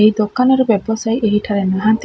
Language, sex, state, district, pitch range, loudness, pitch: Odia, female, Odisha, Khordha, 210-225 Hz, -15 LUFS, 215 Hz